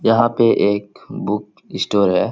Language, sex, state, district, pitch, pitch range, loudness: Hindi, male, Uttar Pradesh, Etah, 105 Hz, 100-115 Hz, -18 LUFS